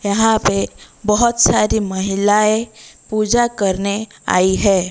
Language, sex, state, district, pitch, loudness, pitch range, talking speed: Hindi, female, Odisha, Malkangiri, 210 Hz, -16 LUFS, 195-220 Hz, 110 wpm